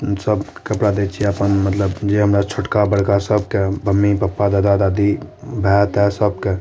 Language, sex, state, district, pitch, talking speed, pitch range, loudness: Maithili, male, Bihar, Madhepura, 100 Hz, 170 wpm, 100-105 Hz, -17 LUFS